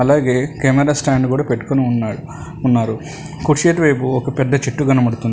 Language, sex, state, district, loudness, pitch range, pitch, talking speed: Telugu, male, Telangana, Hyderabad, -16 LUFS, 125-150 Hz, 135 Hz, 145 wpm